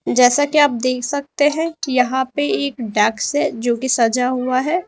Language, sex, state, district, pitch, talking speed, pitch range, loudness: Hindi, female, Uttar Pradesh, Lalitpur, 260 Hz, 195 wpm, 245-290 Hz, -17 LUFS